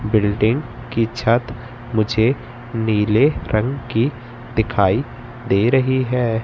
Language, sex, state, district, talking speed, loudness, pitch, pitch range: Hindi, male, Madhya Pradesh, Katni, 105 wpm, -19 LUFS, 120 Hz, 110-125 Hz